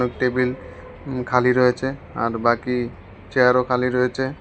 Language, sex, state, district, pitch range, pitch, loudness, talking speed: Bengali, male, Tripura, West Tripura, 120-125 Hz, 125 Hz, -21 LUFS, 150 wpm